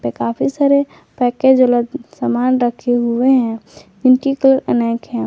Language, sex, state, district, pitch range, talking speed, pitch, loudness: Hindi, female, Jharkhand, Garhwa, 230-265 Hz, 115 wpm, 245 Hz, -15 LUFS